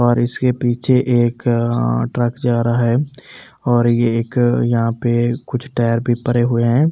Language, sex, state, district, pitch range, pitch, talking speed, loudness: Hindi, male, Delhi, New Delhi, 120-125 Hz, 120 Hz, 175 wpm, -17 LUFS